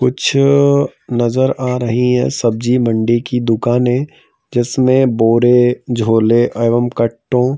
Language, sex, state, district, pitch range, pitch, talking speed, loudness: Hindi, male, Madhya Pradesh, Bhopal, 115-130 Hz, 125 Hz, 110 wpm, -14 LUFS